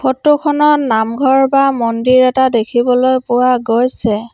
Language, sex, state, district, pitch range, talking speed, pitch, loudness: Assamese, female, Assam, Sonitpur, 235-270 Hz, 125 wpm, 255 Hz, -12 LUFS